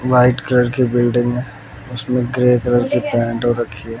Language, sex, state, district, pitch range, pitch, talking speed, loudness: Hindi, male, Bihar, West Champaran, 120-125 Hz, 120 Hz, 195 wpm, -17 LUFS